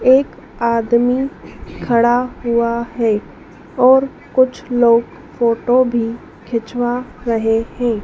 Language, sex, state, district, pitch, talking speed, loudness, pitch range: Hindi, female, Madhya Pradesh, Dhar, 235 Hz, 95 wpm, -16 LUFS, 230-250 Hz